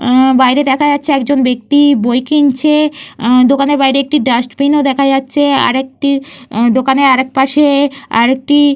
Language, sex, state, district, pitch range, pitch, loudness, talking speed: Bengali, female, Jharkhand, Jamtara, 260-285 Hz, 275 Hz, -11 LUFS, 165 wpm